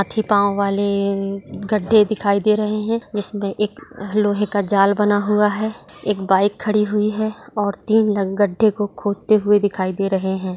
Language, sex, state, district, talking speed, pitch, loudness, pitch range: Hindi, female, Maharashtra, Dhule, 180 wpm, 205 Hz, -18 LUFS, 200-210 Hz